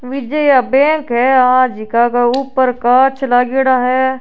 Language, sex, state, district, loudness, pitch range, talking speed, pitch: Rajasthani, female, Rajasthan, Churu, -13 LUFS, 245-265 Hz, 140 wpm, 255 Hz